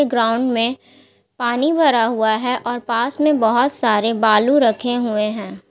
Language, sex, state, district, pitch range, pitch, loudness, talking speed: Hindi, female, Bihar, Gaya, 225-250 Hz, 235 Hz, -17 LUFS, 145 wpm